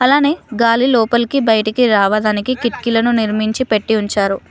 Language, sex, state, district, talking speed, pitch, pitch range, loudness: Telugu, female, Telangana, Mahabubabad, 120 wpm, 230 Hz, 215-245 Hz, -15 LUFS